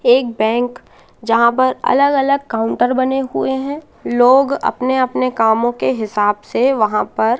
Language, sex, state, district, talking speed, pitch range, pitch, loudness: Hindi, female, Madhya Pradesh, Katni, 155 wpm, 225-265 Hz, 250 Hz, -16 LUFS